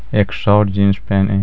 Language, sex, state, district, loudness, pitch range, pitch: Hindi, male, Jharkhand, Garhwa, -15 LUFS, 100-105 Hz, 100 Hz